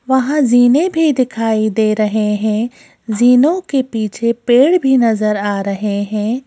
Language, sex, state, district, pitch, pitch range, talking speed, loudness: Hindi, female, Madhya Pradesh, Bhopal, 235 Hz, 215-260 Hz, 150 wpm, -14 LUFS